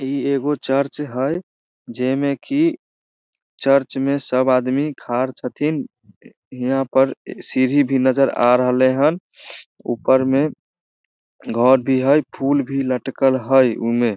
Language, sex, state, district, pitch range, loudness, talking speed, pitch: Maithili, male, Bihar, Samastipur, 130-140 Hz, -19 LUFS, 130 wpm, 135 Hz